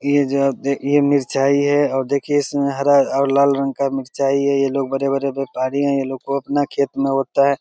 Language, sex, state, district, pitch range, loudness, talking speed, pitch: Maithili, male, Bihar, Begusarai, 135-140 Hz, -18 LUFS, 245 wpm, 140 Hz